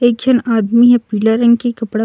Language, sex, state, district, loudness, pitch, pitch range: Chhattisgarhi, female, Chhattisgarh, Sukma, -13 LUFS, 235 Hz, 225-240 Hz